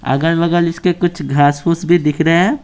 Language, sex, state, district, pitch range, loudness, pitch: Hindi, male, Bihar, Patna, 150-175 Hz, -14 LUFS, 170 Hz